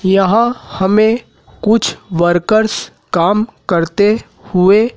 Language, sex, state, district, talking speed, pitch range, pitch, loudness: Hindi, male, Madhya Pradesh, Dhar, 85 wpm, 185-220 Hz, 205 Hz, -14 LUFS